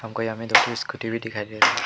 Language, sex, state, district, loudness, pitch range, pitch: Hindi, male, Arunachal Pradesh, Lower Dibang Valley, -23 LUFS, 110-115 Hz, 115 Hz